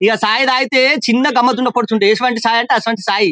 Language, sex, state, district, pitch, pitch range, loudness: Telugu, male, Telangana, Karimnagar, 240 Hz, 220-255 Hz, -13 LUFS